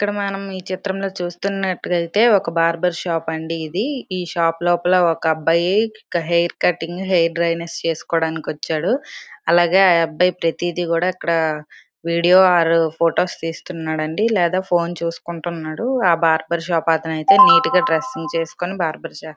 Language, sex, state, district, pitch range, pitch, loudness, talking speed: Telugu, female, Andhra Pradesh, Srikakulam, 165-185 Hz, 170 Hz, -19 LUFS, 140 wpm